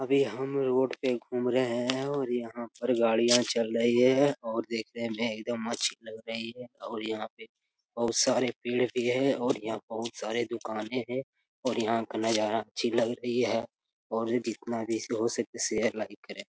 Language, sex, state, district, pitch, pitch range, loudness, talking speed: Hindi, male, Bihar, Jamui, 120 Hz, 115-125 Hz, -30 LUFS, 185 wpm